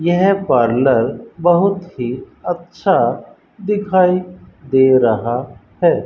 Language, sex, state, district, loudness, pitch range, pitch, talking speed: Hindi, male, Rajasthan, Bikaner, -16 LUFS, 125-185 Hz, 170 Hz, 90 wpm